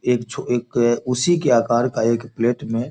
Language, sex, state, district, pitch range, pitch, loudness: Hindi, male, Bihar, Gopalganj, 115-125 Hz, 120 Hz, -20 LUFS